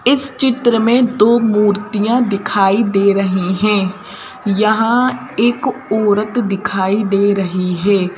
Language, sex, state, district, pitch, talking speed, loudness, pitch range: Hindi, female, Madhya Pradesh, Bhopal, 210 Hz, 115 wpm, -14 LUFS, 200-240 Hz